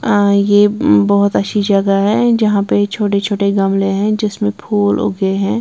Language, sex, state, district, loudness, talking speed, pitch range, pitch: Hindi, female, Bihar, Patna, -14 LUFS, 160 wpm, 195-210 Hz, 205 Hz